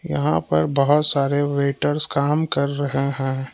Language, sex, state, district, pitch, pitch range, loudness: Hindi, male, Jharkhand, Palamu, 140 Hz, 135-145 Hz, -19 LUFS